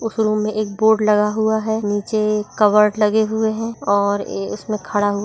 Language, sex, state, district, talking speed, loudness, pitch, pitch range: Hindi, female, Bihar, East Champaran, 185 wpm, -18 LUFS, 215 Hz, 205-220 Hz